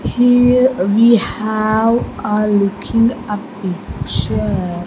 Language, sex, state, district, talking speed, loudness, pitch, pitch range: English, female, Andhra Pradesh, Sri Satya Sai, 100 wpm, -15 LUFS, 215 Hz, 200-235 Hz